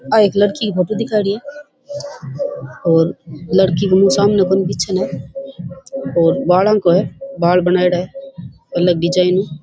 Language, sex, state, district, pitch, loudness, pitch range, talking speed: Rajasthani, female, Rajasthan, Churu, 185 Hz, -15 LUFS, 170-205 Hz, 155 wpm